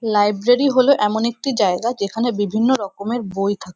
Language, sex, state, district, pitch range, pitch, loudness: Bengali, female, West Bengal, North 24 Parganas, 200-245 Hz, 220 Hz, -18 LUFS